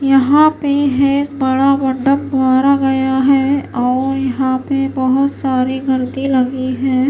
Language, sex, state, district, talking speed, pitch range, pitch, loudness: Hindi, female, Maharashtra, Mumbai Suburban, 120 wpm, 260-275 Hz, 270 Hz, -14 LUFS